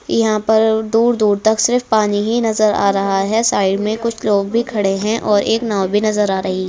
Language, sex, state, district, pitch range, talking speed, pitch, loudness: Hindi, female, Bihar, Araria, 200-225 Hz, 225 wpm, 215 Hz, -16 LUFS